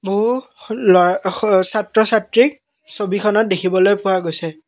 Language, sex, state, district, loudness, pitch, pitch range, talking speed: Assamese, male, Assam, Kamrup Metropolitan, -16 LUFS, 205 Hz, 185-225 Hz, 115 wpm